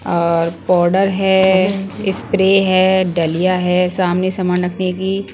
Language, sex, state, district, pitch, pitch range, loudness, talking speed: Hindi, female, Punjab, Pathankot, 185 Hz, 180-190 Hz, -15 LUFS, 135 wpm